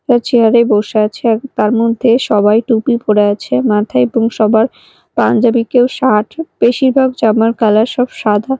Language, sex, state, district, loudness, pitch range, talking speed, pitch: Bengali, female, Odisha, Malkangiri, -12 LUFS, 215-245 Hz, 160 wpm, 230 Hz